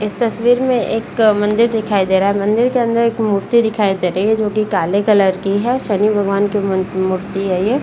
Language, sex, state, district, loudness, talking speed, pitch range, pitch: Hindi, female, Bihar, Saran, -15 LUFS, 245 wpm, 195-230 Hz, 210 Hz